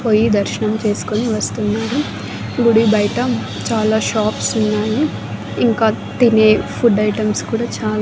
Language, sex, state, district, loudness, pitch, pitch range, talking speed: Telugu, female, Andhra Pradesh, Annamaya, -17 LUFS, 220 Hz, 215-230 Hz, 110 wpm